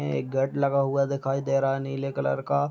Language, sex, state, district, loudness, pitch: Hindi, male, Bihar, Sitamarhi, -26 LUFS, 135 Hz